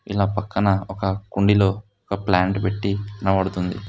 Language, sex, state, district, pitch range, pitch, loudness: Telugu, male, Telangana, Hyderabad, 95-100 Hz, 100 Hz, -22 LUFS